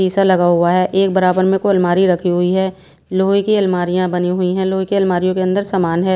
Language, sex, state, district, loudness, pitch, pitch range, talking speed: Hindi, female, Himachal Pradesh, Shimla, -15 LUFS, 185 Hz, 180-190 Hz, 245 wpm